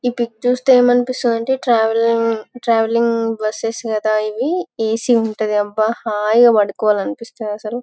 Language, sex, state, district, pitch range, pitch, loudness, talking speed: Telugu, female, Telangana, Karimnagar, 215-240 Hz, 230 Hz, -17 LUFS, 145 wpm